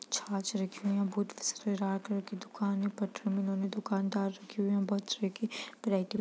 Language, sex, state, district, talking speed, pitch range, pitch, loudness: Hindi, female, Bihar, East Champaran, 125 wpm, 195-210 Hz, 200 Hz, -34 LUFS